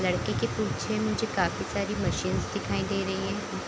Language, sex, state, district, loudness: Hindi, female, Bihar, Kishanganj, -29 LUFS